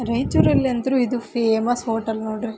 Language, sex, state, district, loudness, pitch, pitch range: Kannada, female, Karnataka, Raichur, -21 LUFS, 235 Hz, 225-245 Hz